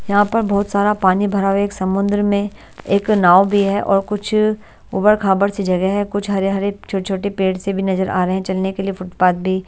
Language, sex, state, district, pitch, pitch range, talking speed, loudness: Hindi, male, Delhi, New Delhi, 195 Hz, 190-205 Hz, 215 wpm, -17 LUFS